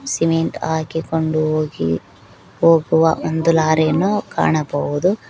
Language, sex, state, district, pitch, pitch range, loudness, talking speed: Kannada, female, Karnataka, Koppal, 160 Hz, 150-165 Hz, -18 LUFS, 80 wpm